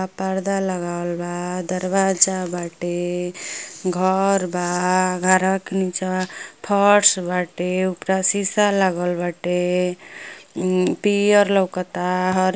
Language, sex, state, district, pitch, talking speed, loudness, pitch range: Bhojpuri, female, Uttar Pradesh, Ghazipur, 185 Hz, 100 wpm, -20 LUFS, 180-190 Hz